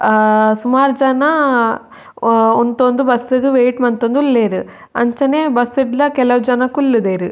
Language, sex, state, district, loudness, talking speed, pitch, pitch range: Tulu, female, Karnataka, Dakshina Kannada, -14 LUFS, 105 wpm, 250 Hz, 235-270 Hz